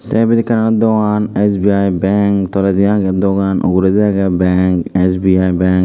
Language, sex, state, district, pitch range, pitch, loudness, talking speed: Chakma, male, Tripura, Dhalai, 95-105 Hz, 100 Hz, -13 LUFS, 155 wpm